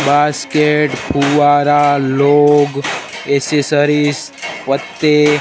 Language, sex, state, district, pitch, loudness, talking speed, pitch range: Hindi, male, Gujarat, Gandhinagar, 145 Hz, -13 LUFS, 55 wpm, 140-150 Hz